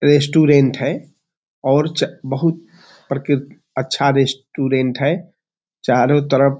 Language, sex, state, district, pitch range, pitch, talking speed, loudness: Hindi, male, Bihar, Araria, 135-160 Hz, 140 Hz, 90 wpm, -17 LUFS